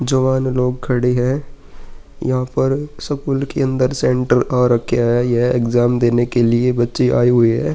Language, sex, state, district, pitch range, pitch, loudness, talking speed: Hindi, male, Uttar Pradesh, Muzaffarnagar, 120-130 Hz, 125 Hz, -17 LUFS, 170 wpm